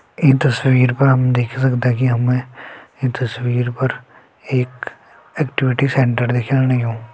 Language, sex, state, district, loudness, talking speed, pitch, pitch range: Hindi, male, Uttarakhand, Tehri Garhwal, -17 LUFS, 145 wpm, 125 Hz, 125-130 Hz